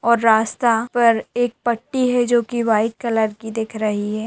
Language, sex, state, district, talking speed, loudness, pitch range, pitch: Hindi, female, Bihar, Darbhanga, 195 wpm, -19 LUFS, 220-240 Hz, 230 Hz